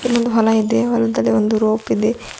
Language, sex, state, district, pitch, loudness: Kannada, female, Karnataka, Bidar, 215 Hz, -17 LUFS